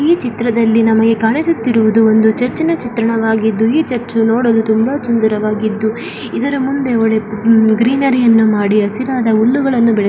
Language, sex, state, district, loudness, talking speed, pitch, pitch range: Kannada, female, Karnataka, Dakshina Kannada, -13 LUFS, 125 wpm, 225 Hz, 220-250 Hz